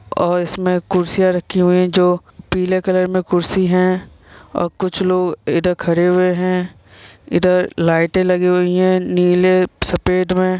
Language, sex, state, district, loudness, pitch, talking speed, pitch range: Hindi, male, Bihar, Vaishali, -16 LUFS, 180 Hz, 155 wpm, 180-185 Hz